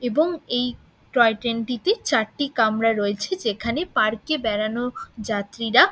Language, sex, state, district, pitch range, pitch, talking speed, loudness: Bengali, female, West Bengal, Dakshin Dinajpur, 220-255 Hz, 230 Hz, 140 wpm, -23 LUFS